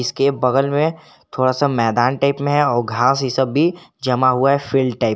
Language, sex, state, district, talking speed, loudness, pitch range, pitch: Hindi, male, Jharkhand, Garhwa, 220 wpm, -17 LUFS, 125-140 Hz, 135 Hz